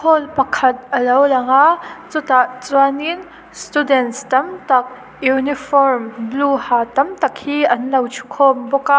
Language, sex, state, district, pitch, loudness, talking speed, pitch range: Mizo, female, Mizoram, Aizawl, 270 Hz, -16 LUFS, 145 wpm, 255-290 Hz